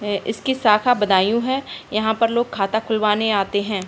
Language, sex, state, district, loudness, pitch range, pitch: Hindi, female, Uttar Pradesh, Budaun, -19 LUFS, 205-230 Hz, 215 Hz